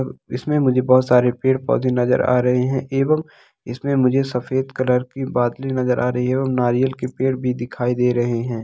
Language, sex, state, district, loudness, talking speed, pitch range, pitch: Hindi, male, Bihar, Purnia, -19 LUFS, 215 wpm, 125-130 Hz, 125 Hz